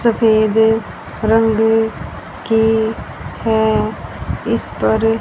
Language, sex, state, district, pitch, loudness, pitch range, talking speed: Hindi, female, Haryana, Rohtak, 220 Hz, -16 LUFS, 220-225 Hz, 70 wpm